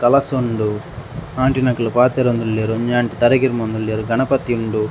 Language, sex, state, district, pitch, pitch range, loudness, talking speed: Tulu, male, Karnataka, Dakshina Kannada, 120 Hz, 110-130 Hz, -18 LUFS, 120 wpm